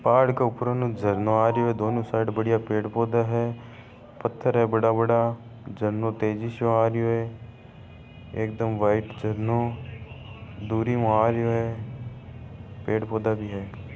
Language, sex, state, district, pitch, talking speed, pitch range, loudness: Marwari, male, Rajasthan, Churu, 115 Hz, 160 wpm, 110-115 Hz, -25 LUFS